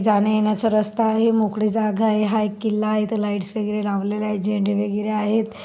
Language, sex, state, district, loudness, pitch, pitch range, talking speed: Marathi, female, Maharashtra, Chandrapur, -21 LUFS, 215 Hz, 210-215 Hz, 200 wpm